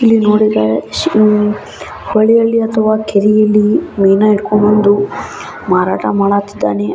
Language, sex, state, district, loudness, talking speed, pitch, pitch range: Kannada, male, Karnataka, Belgaum, -12 LUFS, 95 wpm, 210 Hz, 200-215 Hz